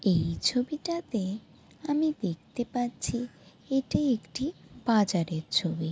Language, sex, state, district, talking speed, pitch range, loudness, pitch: Bengali, female, West Bengal, Jalpaiguri, 90 wpm, 180-270 Hz, -30 LUFS, 240 Hz